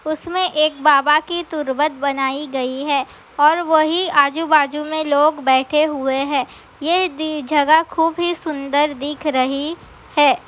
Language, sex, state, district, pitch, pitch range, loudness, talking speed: Hindi, female, Bihar, Begusarai, 300 Hz, 280-315 Hz, -18 LUFS, 145 wpm